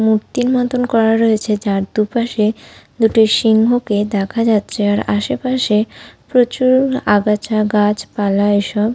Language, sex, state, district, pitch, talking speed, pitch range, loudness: Bengali, female, West Bengal, Jhargram, 220 Hz, 105 wpm, 210-240 Hz, -15 LUFS